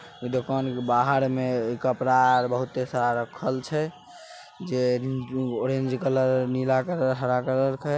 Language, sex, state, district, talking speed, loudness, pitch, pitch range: Maithili, male, Bihar, Samastipur, 130 wpm, -25 LUFS, 130 Hz, 125-135 Hz